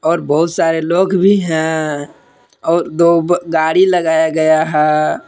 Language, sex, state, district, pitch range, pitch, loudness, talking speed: Hindi, male, Jharkhand, Palamu, 160-170 Hz, 165 Hz, -14 LUFS, 135 wpm